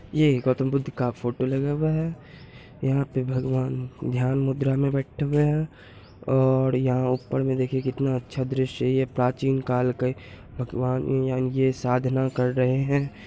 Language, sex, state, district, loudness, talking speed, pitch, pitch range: Hindi, male, Bihar, Purnia, -25 LUFS, 175 wpm, 130 Hz, 125-135 Hz